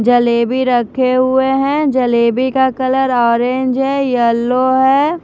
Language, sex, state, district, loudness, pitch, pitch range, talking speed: Hindi, female, Bihar, Patna, -13 LUFS, 255 Hz, 245-265 Hz, 125 wpm